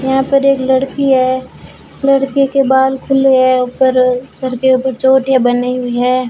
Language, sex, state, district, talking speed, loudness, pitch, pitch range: Hindi, female, Rajasthan, Bikaner, 170 wpm, -12 LUFS, 260 Hz, 255-270 Hz